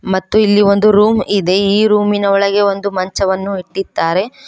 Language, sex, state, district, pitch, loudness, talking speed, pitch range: Kannada, female, Karnataka, Koppal, 200 Hz, -13 LUFS, 105 wpm, 190-205 Hz